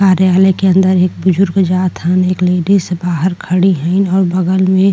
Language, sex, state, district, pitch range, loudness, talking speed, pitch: Bhojpuri, female, Uttar Pradesh, Deoria, 180-190 Hz, -12 LUFS, 195 wpm, 185 Hz